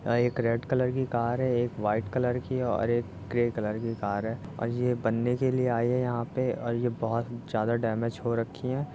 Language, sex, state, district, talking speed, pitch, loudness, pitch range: Hindi, male, Uttar Pradesh, Jyotiba Phule Nagar, 240 wpm, 120 Hz, -29 LUFS, 115-125 Hz